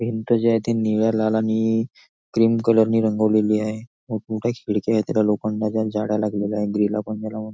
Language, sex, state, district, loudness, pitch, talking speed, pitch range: Marathi, male, Maharashtra, Nagpur, -21 LUFS, 110 Hz, 175 wpm, 105-115 Hz